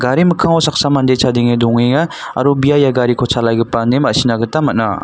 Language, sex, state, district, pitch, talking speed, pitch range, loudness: Garo, male, Meghalaya, North Garo Hills, 125 Hz, 165 wpm, 120-145 Hz, -13 LUFS